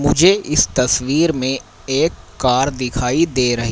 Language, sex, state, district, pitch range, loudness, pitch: Hindi, male, Haryana, Rohtak, 125-145 Hz, -17 LUFS, 130 Hz